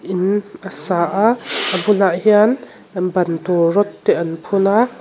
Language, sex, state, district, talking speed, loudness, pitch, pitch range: Mizo, female, Mizoram, Aizawl, 155 wpm, -17 LUFS, 195 Hz, 175-210 Hz